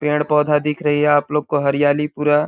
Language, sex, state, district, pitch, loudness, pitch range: Hindi, male, Chhattisgarh, Balrampur, 150 Hz, -17 LUFS, 145-150 Hz